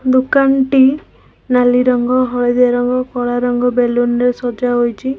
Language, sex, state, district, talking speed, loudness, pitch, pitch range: Odia, female, Odisha, Khordha, 125 wpm, -14 LUFS, 250 Hz, 245-255 Hz